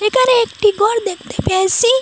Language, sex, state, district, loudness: Bengali, female, Assam, Hailakandi, -15 LUFS